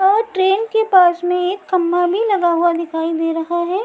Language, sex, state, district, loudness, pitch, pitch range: Hindi, female, Maharashtra, Mumbai Suburban, -16 LUFS, 360 Hz, 345-390 Hz